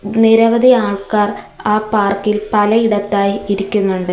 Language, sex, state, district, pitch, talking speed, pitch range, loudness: Malayalam, female, Kerala, Kollam, 210 Hz, 100 wpm, 200-220 Hz, -14 LUFS